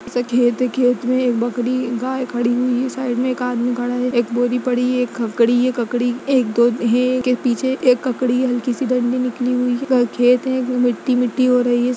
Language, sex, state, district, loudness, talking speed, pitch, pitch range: Hindi, female, Uttarakhand, Uttarkashi, -18 LUFS, 230 wpm, 250 Hz, 245-255 Hz